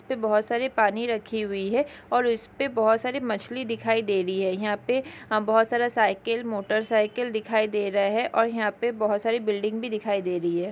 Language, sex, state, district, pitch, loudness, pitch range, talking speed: Hindi, female, Chhattisgarh, Kabirdham, 220 Hz, -25 LUFS, 210-235 Hz, 215 wpm